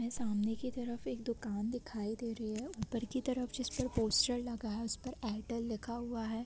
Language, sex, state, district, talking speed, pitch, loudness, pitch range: Hindi, female, Chhattisgarh, Bilaspur, 225 wpm, 235 Hz, -38 LUFS, 225-245 Hz